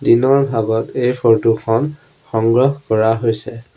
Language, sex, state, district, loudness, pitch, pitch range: Assamese, male, Assam, Sonitpur, -16 LUFS, 115 Hz, 115-135 Hz